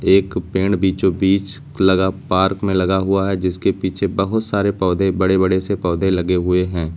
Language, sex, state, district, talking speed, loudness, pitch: Hindi, male, Uttar Pradesh, Lucknow, 190 wpm, -18 LUFS, 95 Hz